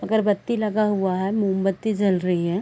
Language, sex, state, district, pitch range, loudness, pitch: Hindi, female, Chhattisgarh, Raigarh, 190-215 Hz, -22 LUFS, 200 Hz